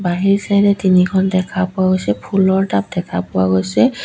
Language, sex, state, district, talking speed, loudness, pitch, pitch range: Assamese, female, Assam, Sonitpur, 165 wpm, -16 LUFS, 190 Hz, 175-195 Hz